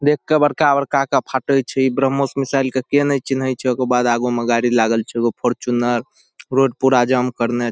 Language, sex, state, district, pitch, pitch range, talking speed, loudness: Maithili, male, Bihar, Saharsa, 130 Hz, 120-135 Hz, 210 wpm, -18 LUFS